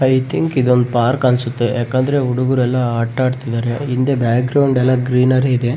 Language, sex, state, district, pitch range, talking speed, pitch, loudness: Kannada, male, Karnataka, Bellary, 120-130 Hz, 165 wpm, 125 Hz, -16 LUFS